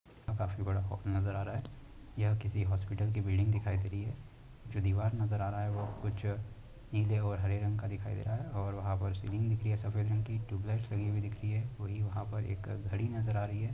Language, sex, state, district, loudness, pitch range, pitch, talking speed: Hindi, male, Uttar Pradesh, Hamirpur, -36 LUFS, 100-110 Hz, 105 Hz, 260 wpm